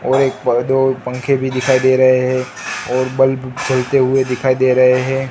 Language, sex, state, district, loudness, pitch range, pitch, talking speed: Hindi, male, Gujarat, Gandhinagar, -15 LUFS, 130-135 Hz, 130 Hz, 205 wpm